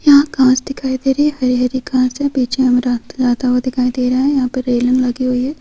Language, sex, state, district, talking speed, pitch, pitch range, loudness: Hindi, female, Bihar, Vaishali, 245 wpm, 255 Hz, 250-270 Hz, -15 LUFS